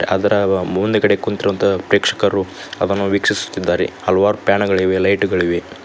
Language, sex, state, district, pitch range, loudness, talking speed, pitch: Kannada, male, Karnataka, Koppal, 95-100 Hz, -17 LUFS, 100 wpm, 100 Hz